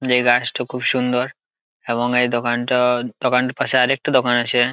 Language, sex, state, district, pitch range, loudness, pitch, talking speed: Bengali, male, West Bengal, Jalpaiguri, 120-125 Hz, -18 LUFS, 125 Hz, 150 wpm